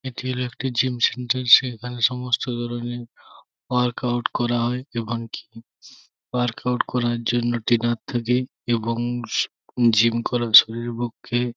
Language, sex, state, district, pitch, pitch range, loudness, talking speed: Bengali, male, West Bengal, Jhargram, 120 Hz, 120-125 Hz, -22 LUFS, 125 wpm